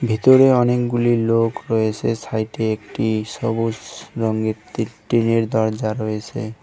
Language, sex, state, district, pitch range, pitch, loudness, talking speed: Bengali, male, West Bengal, Cooch Behar, 110-115 Hz, 115 Hz, -19 LUFS, 110 wpm